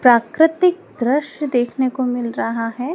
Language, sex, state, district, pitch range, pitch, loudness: Hindi, female, Madhya Pradesh, Dhar, 240-305 Hz, 255 Hz, -19 LUFS